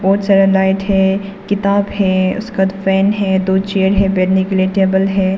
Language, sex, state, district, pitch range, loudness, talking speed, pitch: Hindi, female, Arunachal Pradesh, Papum Pare, 190-195 Hz, -14 LUFS, 190 wpm, 195 Hz